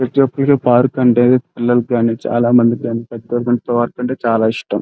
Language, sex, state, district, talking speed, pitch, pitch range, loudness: Telugu, male, Andhra Pradesh, Krishna, 125 wpm, 120 Hz, 115-125 Hz, -15 LUFS